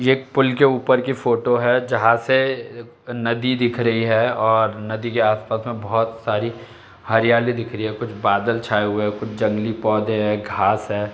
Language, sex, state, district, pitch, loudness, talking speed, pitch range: Hindi, male, Uttar Pradesh, Etah, 115 Hz, -20 LUFS, 195 wpm, 110-120 Hz